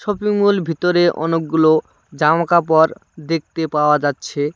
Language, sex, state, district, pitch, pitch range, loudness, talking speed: Bengali, male, West Bengal, Cooch Behar, 160 Hz, 155-175 Hz, -17 LUFS, 120 wpm